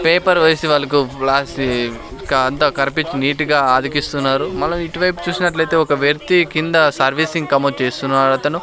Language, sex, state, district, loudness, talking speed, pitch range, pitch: Telugu, male, Andhra Pradesh, Sri Satya Sai, -16 LUFS, 145 wpm, 135-160 Hz, 145 Hz